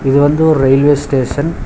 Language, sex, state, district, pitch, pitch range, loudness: Tamil, male, Tamil Nadu, Chennai, 145 Hz, 135-145 Hz, -12 LUFS